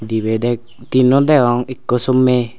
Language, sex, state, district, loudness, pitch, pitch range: Chakma, male, Tripura, Unakoti, -15 LUFS, 125 Hz, 120-130 Hz